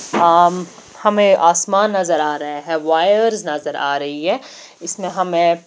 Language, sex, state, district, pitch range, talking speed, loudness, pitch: Hindi, female, Maharashtra, Gondia, 150-190 Hz, 150 wpm, -16 LUFS, 170 Hz